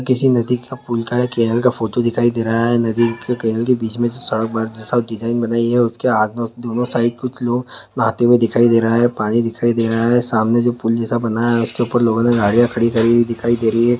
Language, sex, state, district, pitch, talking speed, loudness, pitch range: Hindi, male, West Bengal, Kolkata, 120 Hz, 255 wpm, -17 LUFS, 115-120 Hz